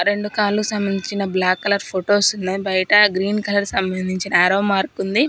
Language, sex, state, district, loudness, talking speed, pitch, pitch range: Telugu, female, Telangana, Hyderabad, -18 LUFS, 160 wpm, 200 Hz, 190-205 Hz